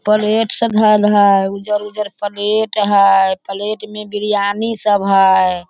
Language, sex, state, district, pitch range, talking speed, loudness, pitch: Hindi, female, Bihar, Sitamarhi, 200-215 Hz, 125 wpm, -14 LUFS, 210 Hz